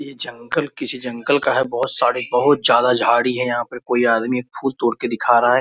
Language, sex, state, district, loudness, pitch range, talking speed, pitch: Hindi, male, Bihar, Muzaffarpur, -18 LUFS, 120-130 Hz, 245 wpm, 125 Hz